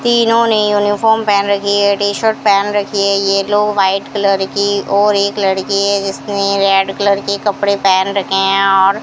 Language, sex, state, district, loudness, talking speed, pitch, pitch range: Hindi, female, Rajasthan, Bikaner, -13 LUFS, 185 wpm, 200 Hz, 195-205 Hz